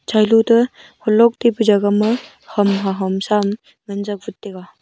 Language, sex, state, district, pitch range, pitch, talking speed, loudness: Wancho, female, Arunachal Pradesh, Longding, 200-225 Hz, 210 Hz, 60 wpm, -17 LUFS